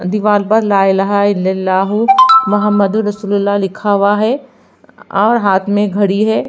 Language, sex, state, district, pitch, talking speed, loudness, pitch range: Hindi, female, Bihar, Katihar, 205 Hz, 175 wpm, -12 LUFS, 200-215 Hz